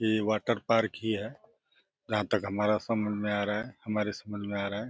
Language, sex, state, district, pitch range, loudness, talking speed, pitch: Hindi, male, Uttar Pradesh, Deoria, 105-110 Hz, -31 LUFS, 230 wpm, 105 Hz